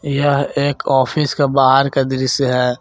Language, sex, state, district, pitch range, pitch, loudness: Hindi, male, Jharkhand, Garhwa, 130-140 Hz, 135 Hz, -16 LUFS